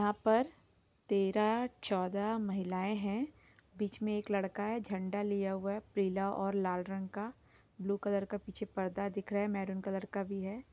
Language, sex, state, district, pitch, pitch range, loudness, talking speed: Hindi, female, Jharkhand, Sahebganj, 200 Hz, 195-210 Hz, -36 LUFS, 180 wpm